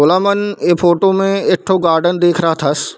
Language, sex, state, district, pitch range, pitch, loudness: Chhattisgarhi, male, Chhattisgarh, Bilaspur, 165-195 Hz, 175 Hz, -13 LUFS